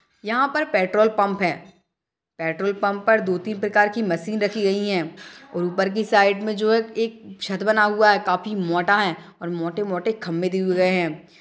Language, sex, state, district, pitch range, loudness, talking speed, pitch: Hindi, female, Uttar Pradesh, Jalaun, 180-215 Hz, -21 LUFS, 210 wpm, 200 Hz